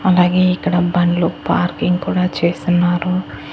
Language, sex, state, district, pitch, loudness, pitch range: Telugu, female, Andhra Pradesh, Annamaya, 180 Hz, -16 LUFS, 175-180 Hz